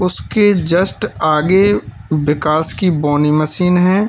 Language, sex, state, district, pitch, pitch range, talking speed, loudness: Hindi, male, Uttar Pradesh, Lalitpur, 165 Hz, 150-185 Hz, 115 wpm, -14 LUFS